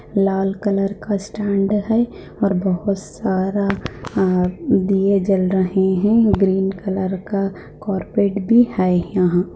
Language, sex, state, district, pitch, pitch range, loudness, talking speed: Hindi, female, Bihar, Purnia, 195 Hz, 190-200 Hz, -19 LUFS, 125 wpm